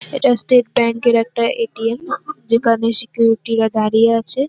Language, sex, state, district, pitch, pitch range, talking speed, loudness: Bengali, female, West Bengal, North 24 Parganas, 230 Hz, 230-245 Hz, 145 wpm, -15 LUFS